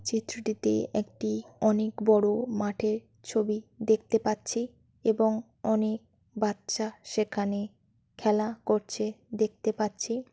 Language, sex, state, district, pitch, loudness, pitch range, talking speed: Bengali, female, West Bengal, Jalpaiguri, 215 Hz, -29 LUFS, 210-220 Hz, 95 wpm